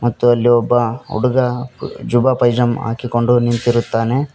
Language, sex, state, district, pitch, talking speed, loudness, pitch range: Kannada, male, Karnataka, Koppal, 120 Hz, 110 wpm, -16 LUFS, 120-125 Hz